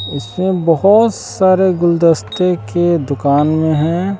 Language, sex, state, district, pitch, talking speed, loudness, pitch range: Hindi, male, Bihar, West Champaran, 170 Hz, 130 wpm, -14 LUFS, 155-185 Hz